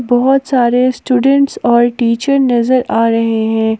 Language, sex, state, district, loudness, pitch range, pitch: Hindi, female, Jharkhand, Palamu, -12 LUFS, 230-255 Hz, 245 Hz